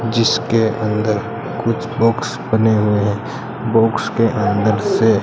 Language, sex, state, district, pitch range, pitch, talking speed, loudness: Hindi, male, Rajasthan, Bikaner, 105-115 Hz, 110 Hz, 125 wpm, -17 LUFS